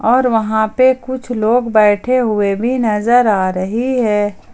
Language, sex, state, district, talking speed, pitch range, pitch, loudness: Hindi, female, Jharkhand, Ranchi, 160 wpm, 210-250 Hz, 225 Hz, -14 LUFS